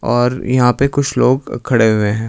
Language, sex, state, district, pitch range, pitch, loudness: Hindi, male, Uttar Pradesh, Lucknow, 115-130 Hz, 125 Hz, -15 LUFS